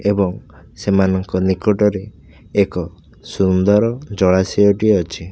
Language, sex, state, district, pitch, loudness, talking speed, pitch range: Odia, male, Odisha, Khordha, 95 Hz, -17 LUFS, 90 wpm, 90-105 Hz